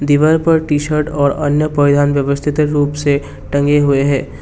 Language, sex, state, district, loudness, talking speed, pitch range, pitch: Hindi, male, Assam, Kamrup Metropolitan, -14 LUFS, 175 wpm, 140-150 Hz, 145 Hz